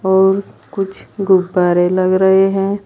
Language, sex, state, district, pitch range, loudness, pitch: Hindi, female, Uttar Pradesh, Saharanpur, 185-195 Hz, -14 LUFS, 190 Hz